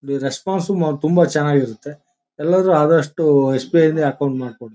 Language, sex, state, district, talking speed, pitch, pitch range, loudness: Kannada, male, Karnataka, Shimoga, 165 wpm, 150 Hz, 140-165 Hz, -17 LUFS